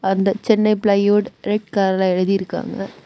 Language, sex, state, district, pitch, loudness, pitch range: Tamil, female, Tamil Nadu, Kanyakumari, 200 Hz, -18 LUFS, 190-210 Hz